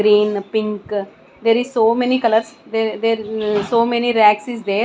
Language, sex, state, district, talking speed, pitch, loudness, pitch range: English, female, Odisha, Nuapada, 185 wpm, 225 Hz, -17 LUFS, 210-230 Hz